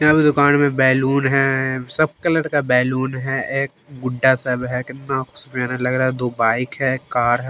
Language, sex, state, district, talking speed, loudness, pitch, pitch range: Hindi, male, Haryana, Jhajjar, 215 wpm, -19 LUFS, 130 Hz, 125-140 Hz